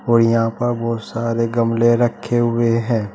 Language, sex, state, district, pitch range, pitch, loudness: Hindi, male, Uttar Pradesh, Saharanpur, 115-120 Hz, 115 Hz, -18 LUFS